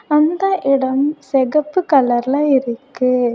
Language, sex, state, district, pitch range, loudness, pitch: Tamil, female, Tamil Nadu, Kanyakumari, 260-300 Hz, -16 LUFS, 275 Hz